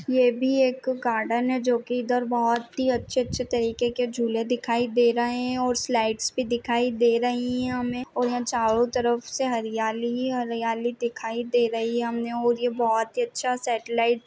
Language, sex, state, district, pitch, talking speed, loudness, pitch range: Hindi, female, Chhattisgarh, Bilaspur, 240 Hz, 195 wpm, -25 LUFS, 235-250 Hz